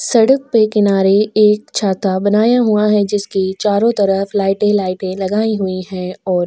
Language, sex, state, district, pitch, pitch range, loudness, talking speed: Hindi, female, Goa, North and South Goa, 200 Hz, 190-215 Hz, -15 LUFS, 175 wpm